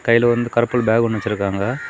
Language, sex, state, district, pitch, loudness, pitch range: Tamil, male, Tamil Nadu, Kanyakumari, 115 Hz, -18 LUFS, 110-120 Hz